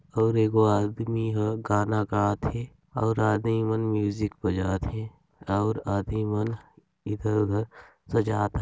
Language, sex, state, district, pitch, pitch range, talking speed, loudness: Hindi, male, Chhattisgarh, Sarguja, 110 Hz, 105-110 Hz, 130 wpm, -27 LUFS